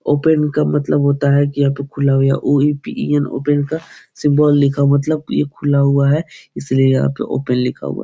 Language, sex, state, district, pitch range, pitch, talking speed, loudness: Hindi, male, Bihar, Jahanabad, 140-145 Hz, 140 Hz, 240 wpm, -16 LUFS